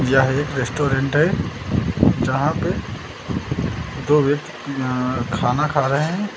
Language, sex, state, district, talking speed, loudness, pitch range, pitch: Hindi, male, Uttar Pradesh, Lucknow, 120 wpm, -20 LUFS, 130-150 Hz, 140 Hz